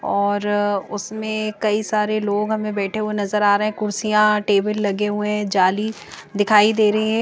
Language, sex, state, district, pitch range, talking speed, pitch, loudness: Hindi, female, Bihar, Kaimur, 205-215 Hz, 175 wpm, 210 Hz, -19 LUFS